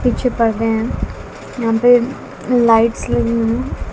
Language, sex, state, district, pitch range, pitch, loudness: Hindi, female, Bihar, West Champaran, 225-245 Hz, 230 Hz, -16 LUFS